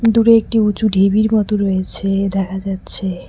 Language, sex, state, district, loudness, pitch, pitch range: Bengali, female, West Bengal, Cooch Behar, -16 LUFS, 200 Hz, 195-215 Hz